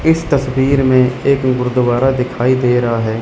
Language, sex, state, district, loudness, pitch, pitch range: Hindi, male, Chandigarh, Chandigarh, -14 LUFS, 130 Hz, 125-135 Hz